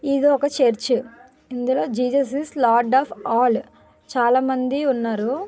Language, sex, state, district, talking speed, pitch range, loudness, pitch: Telugu, female, Andhra Pradesh, Visakhapatnam, 110 wpm, 240-275 Hz, -20 LUFS, 255 Hz